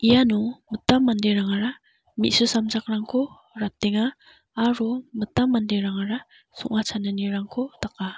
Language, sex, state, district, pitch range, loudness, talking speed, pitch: Garo, female, Meghalaya, West Garo Hills, 210-245 Hz, -24 LUFS, 90 wpm, 225 Hz